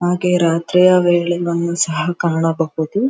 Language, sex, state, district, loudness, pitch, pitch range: Kannada, female, Karnataka, Dharwad, -16 LUFS, 175 Hz, 165-180 Hz